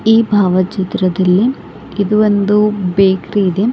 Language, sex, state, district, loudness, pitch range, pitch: Kannada, female, Karnataka, Bidar, -13 LUFS, 190-210 Hz, 200 Hz